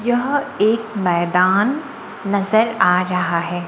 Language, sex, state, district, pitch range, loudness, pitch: Hindi, female, Maharashtra, Washim, 180-230 Hz, -18 LUFS, 200 Hz